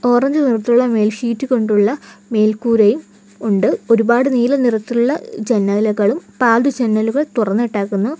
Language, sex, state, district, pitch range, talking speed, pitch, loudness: Malayalam, female, Kerala, Kollam, 215-245 Hz, 95 wpm, 230 Hz, -16 LUFS